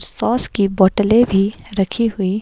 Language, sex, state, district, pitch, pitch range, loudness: Hindi, female, Himachal Pradesh, Shimla, 205 Hz, 195-225 Hz, -16 LUFS